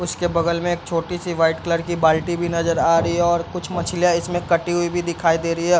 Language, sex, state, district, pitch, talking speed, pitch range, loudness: Hindi, male, Bihar, Bhagalpur, 170 Hz, 260 wpm, 165-175 Hz, -20 LUFS